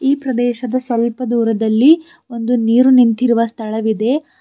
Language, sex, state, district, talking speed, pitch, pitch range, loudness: Kannada, female, Karnataka, Bidar, 110 wpm, 245 Hz, 230-255 Hz, -15 LUFS